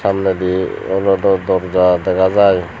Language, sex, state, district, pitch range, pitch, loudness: Chakma, male, Tripura, Unakoti, 90-100 Hz, 95 Hz, -15 LUFS